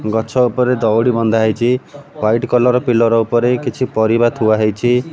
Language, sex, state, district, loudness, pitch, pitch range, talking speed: Odia, male, Odisha, Malkangiri, -15 LUFS, 120 Hz, 110-125 Hz, 130 wpm